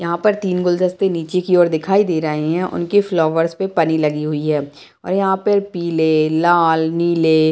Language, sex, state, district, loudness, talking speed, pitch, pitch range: Hindi, female, Bihar, Gopalganj, -17 LUFS, 200 wpm, 170 Hz, 160-185 Hz